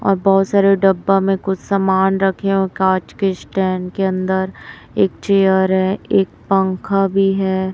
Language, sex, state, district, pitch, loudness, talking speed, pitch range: Hindi, female, Chhattisgarh, Raipur, 195 Hz, -16 LUFS, 170 wpm, 190-195 Hz